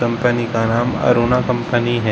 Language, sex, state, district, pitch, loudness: Hindi, male, Uttar Pradesh, Shamli, 120 Hz, -17 LUFS